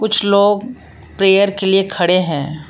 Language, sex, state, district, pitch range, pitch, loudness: Hindi, female, Jharkhand, Palamu, 180-205 Hz, 195 Hz, -14 LUFS